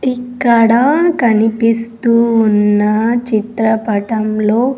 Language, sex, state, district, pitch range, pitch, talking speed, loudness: Telugu, female, Andhra Pradesh, Sri Satya Sai, 215-240 Hz, 230 Hz, 50 wpm, -13 LUFS